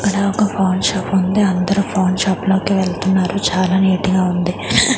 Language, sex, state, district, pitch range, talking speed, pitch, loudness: Telugu, female, Andhra Pradesh, Manyam, 185-200 Hz, 170 wpm, 190 Hz, -16 LUFS